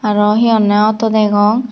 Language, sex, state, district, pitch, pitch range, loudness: Chakma, female, Tripura, Dhalai, 215 Hz, 210-225 Hz, -12 LUFS